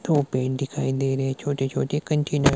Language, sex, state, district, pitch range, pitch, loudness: Hindi, male, Himachal Pradesh, Shimla, 135-150 Hz, 140 Hz, -25 LUFS